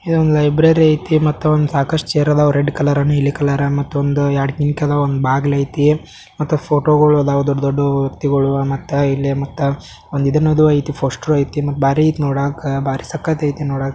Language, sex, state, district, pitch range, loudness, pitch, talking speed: Kannada, male, Karnataka, Belgaum, 140-150 Hz, -16 LUFS, 145 Hz, 155 wpm